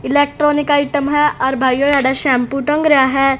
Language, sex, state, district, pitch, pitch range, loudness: Hindi, female, Haryana, Rohtak, 280 Hz, 265-295 Hz, -14 LUFS